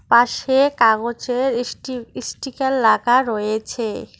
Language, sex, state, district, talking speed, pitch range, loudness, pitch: Bengali, female, West Bengal, Cooch Behar, 70 wpm, 225-260 Hz, -19 LUFS, 240 Hz